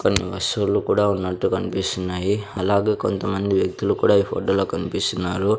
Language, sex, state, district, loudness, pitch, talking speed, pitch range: Telugu, male, Andhra Pradesh, Sri Satya Sai, -22 LUFS, 95 Hz, 130 wpm, 95-100 Hz